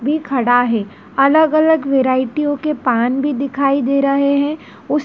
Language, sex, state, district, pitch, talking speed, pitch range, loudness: Hindi, female, Madhya Pradesh, Dhar, 275 Hz, 165 wpm, 260-290 Hz, -16 LUFS